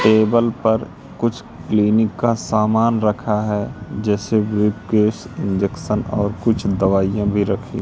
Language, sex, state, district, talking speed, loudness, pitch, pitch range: Hindi, male, Madhya Pradesh, Katni, 130 wpm, -19 LUFS, 105 Hz, 105-115 Hz